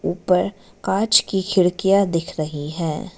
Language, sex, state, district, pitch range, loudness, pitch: Hindi, female, Arunachal Pradesh, Lower Dibang Valley, 170-195 Hz, -20 LUFS, 185 Hz